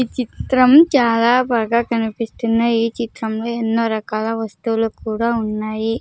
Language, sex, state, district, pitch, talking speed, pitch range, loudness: Telugu, female, Andhra Pradesh, Sri Satya Sai, 230 Hz, 120 wpm, 225-235 Hz, -18 LUFS